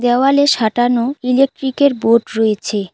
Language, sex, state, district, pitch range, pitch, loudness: Bengali, female, West Bengal, Cooch Behar, 225-270 Hz, 245 Hz, -15 LUFS